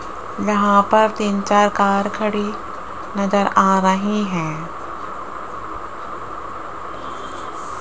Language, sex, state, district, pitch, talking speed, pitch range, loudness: Hindi, female, Rajasthan, Jaipur, 205 Hz, 75 wpm, 200-210 Hz, -19 LUFS